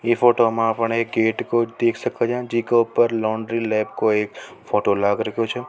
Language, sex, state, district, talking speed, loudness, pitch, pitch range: Rajasthani, male, Rajasthan, Nagaur, 220 wpm, -20 LUFS, 115 Hz, 110-120 Hz